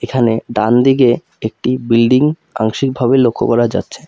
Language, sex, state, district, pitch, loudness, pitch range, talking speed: Bengali, male, West Bengal, Alipurduar, 120 Hz, -14 LUFS, 115-130 Hz, 145 wpm